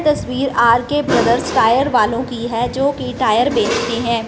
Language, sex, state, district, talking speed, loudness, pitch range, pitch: Hindi, female, Punjab, Fazilka, 180 wpm, -16 LUFS, 235-275 Hz, 245 Hz